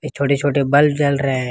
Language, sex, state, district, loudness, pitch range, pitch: Hindi, male, Jharkhand, Ranchi, -17 LUFS, 140-145 Hz, 140 Hz